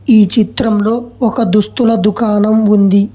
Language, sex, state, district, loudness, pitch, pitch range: Telugu, male, Telangana, Hyderabad, -12 LUFS, 220 Hz, 210-230 Hz